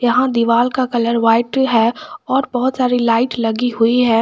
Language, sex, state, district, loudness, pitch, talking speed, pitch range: Hindi, female, Jharkhand, Garhwa, -16 LUFS, 245 Hz, 185 wpm, 230-255 Hz